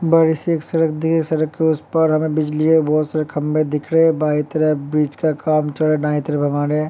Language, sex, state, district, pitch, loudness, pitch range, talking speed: Hindi, male, Uttar Pradesh, Varanasi, 155 Hz, -18 LUFS, 150-160 Hz, 260 wpm